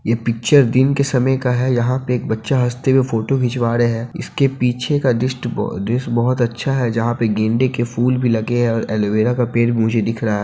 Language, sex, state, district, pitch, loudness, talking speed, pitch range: Hindi, male, Bihar, Sitamarhi, 120 Hz, -17 LUFS, 245 wpm, 115-130 Hz